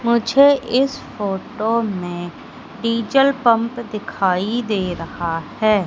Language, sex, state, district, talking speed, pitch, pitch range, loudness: Hindi, female, Madhya Pradesh, Katni, 100 wpm, 225 Hz, 190-240 Hz, -19 LUFS